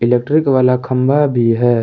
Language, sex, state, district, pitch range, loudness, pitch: Hindi, male, Jharkhand, Ranchi, 120-135 Hz, -14 LUFS, 125 Hz